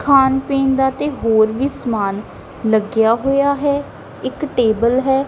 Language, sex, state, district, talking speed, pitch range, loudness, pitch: Punjabi, female, Punjab, Kapurthala, 150 wpm, 225-275 Hz, -17 LUFS, 265 Hz